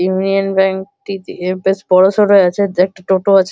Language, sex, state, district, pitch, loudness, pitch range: Bengali, male, West Bengal, Malda, 190 Hz, -13 LUFS, 185-195 Hz